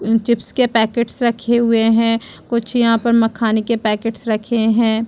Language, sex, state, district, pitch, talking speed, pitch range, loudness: Hindi, female, Chhattisgarh, Bastar, 230 Hz, 165 wpm, 225-235 Hz, -16 LUFS